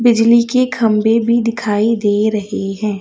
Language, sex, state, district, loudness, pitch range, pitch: Hindi, female, Chhattisgarh, Raipur, -14 LUFS, 210-235 Hz, 225 Hz